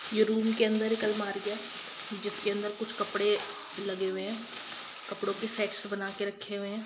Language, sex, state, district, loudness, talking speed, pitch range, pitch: Hindi, female, Bihar, Gopalganj, -30 LUFS, 200 wpm, 205-215 Hz, 210 Hz